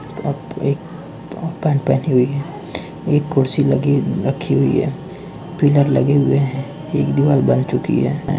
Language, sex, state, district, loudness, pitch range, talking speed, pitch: Hindi, male, West Bengal, Purulia, -18 LUFS, 140-155 Hz, 150 wpm, 145 Hz